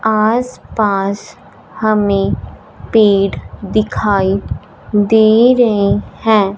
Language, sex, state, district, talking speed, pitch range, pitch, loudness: Hindi, female, Punjab, Fazilka, 65 wpm, 200-220 Hz, 215 Hz, -14 LUFS